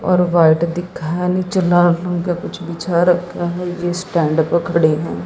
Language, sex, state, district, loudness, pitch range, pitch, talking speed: Hindi, female, Haryana, Jhajjar, -17 LUFS, 170-180 Hz, 175 Hz, 195 wpm